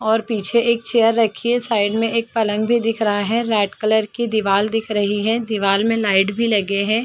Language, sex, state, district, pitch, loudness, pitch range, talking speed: Hindi, female, Chhattisgarh, Balrampur, 220 Hz, -18 LUFS, 210-230 Hz, 240 wpm